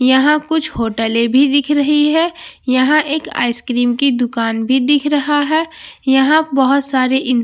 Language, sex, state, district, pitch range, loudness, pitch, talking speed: Hindi, female, Bihar, Katihar, 250-300 Hz, -14 LUFS, 275 Hz, 185 wpm